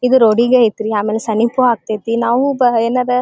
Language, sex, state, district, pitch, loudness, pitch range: Kannada, female, Karnataka, Dharwad, 235 Hz, -14 LUFS, 220-250 Hz